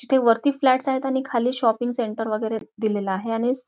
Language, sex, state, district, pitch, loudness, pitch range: Marathi, female, Maharashtra, Nagpur, 240 Hz, -22 LUFS, 220-260 Hz